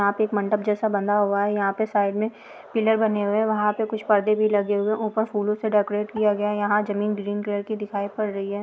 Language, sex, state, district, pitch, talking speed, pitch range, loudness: Hindi, female, Bihar, Jahanabad, 210 Hz, 250 wpm, 205-215 Hz, -23 LUFS